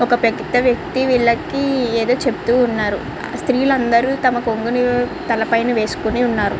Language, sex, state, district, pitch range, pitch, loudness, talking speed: Telugu, male, Andhra Pradesh, Srikakulam, 230-255 Hz, 245 Hz, -17 LUFS, 125 wpm